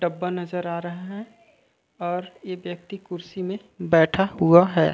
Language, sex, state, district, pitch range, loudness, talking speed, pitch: Chhattisgarhi, male, Chhattisgarh, Raigarh, 175-190 Hz, -23 LUFS, 160 wpm, 180 Hz